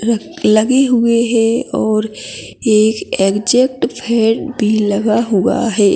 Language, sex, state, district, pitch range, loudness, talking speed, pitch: Hindi, female, Chhattisgarh, Kabirdham, 215-235 Hz, -14 LUFS, 120 wpm, 225 Hz